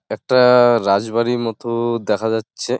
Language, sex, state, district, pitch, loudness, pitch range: Bengali, male, West Bengal, Jalpaiguri, 115 Hz, -17 LUFS, 110-120 Hz